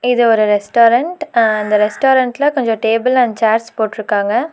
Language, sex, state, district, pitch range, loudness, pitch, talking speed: Tamil, female, Tamil Nadu, Nilgiris, 215-250 Hz, -14 LUFS, 230 Hz, 130 wpm